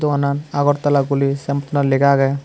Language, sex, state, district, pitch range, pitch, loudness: Chakma, male, Tripura, West Tripura, 140-145 Hz, 140 Hz, -17 LUFS